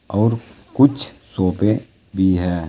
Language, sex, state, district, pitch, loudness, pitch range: Hindi, male, Uttar Pradesh, Saharanpur, 105 Hz, -19 LUFS, 95-115 Hz